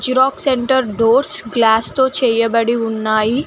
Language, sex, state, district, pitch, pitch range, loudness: Telugu, female, Telangana, Mahabubabad, 235 Hz, 225-260 Hz, -15 LUFS